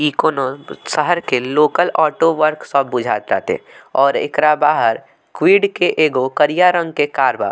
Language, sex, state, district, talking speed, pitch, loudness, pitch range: Bhojpuri, male, Bihar, Muzaffarpur, 160 wpm, 150 Hz, -16 LUFS, 140-165 Hz